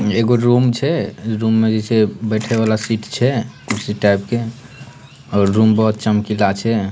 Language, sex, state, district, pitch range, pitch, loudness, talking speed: Hindi, male, Bihar, Purnia, 105-120 Hz, 110 Hz, -17 LUFS, 165 wpm